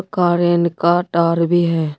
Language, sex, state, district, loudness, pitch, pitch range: Hindi, male, Tripura, West Tripura, -16 LUFS, 170 Hz, 165-175 Hz